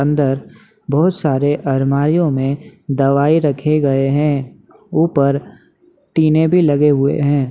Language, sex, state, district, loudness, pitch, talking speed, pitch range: Hindi, male, Bihar, Muzaffarpur, -16 LUFS, 145 Hz, 120 wpm, 140-155 Hz